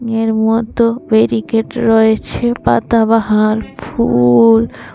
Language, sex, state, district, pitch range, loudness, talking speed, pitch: Bengali, female, Tripura, West Tripura, 220-230 Hz, -13 LUFS, 85 wpm, 225 Hz